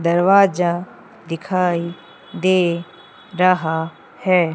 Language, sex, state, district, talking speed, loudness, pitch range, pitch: Hindi, female, Madhya Pradesh, Umaria, 65 wpm, -18 LUFS, 170-185 Hz, 175 Hz